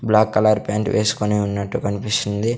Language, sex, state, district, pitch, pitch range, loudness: Telugu, male, Andhra Pradesh, Sri Satya Sai, 105 Hz, 105-110 Hz, -19 LUFS